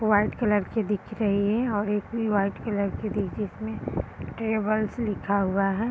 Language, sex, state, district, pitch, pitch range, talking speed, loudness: Hindi, female, Bihar, Purnia, 205 Hz, 200-215 Hz, 160 wpm, -27 LUFS